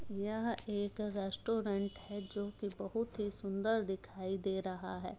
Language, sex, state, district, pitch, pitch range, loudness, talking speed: Hindi, female, Bihar, Muzaffarpur, 205 Hz, 195-215 Hz, -39 LUFS, 150 wpm